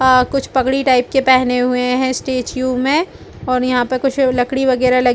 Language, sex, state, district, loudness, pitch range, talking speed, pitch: Hindi, female, Chhattisgarh, Bilaspur, -15 LUFS, 250-265 Hz, 200 wpm, 255 Hz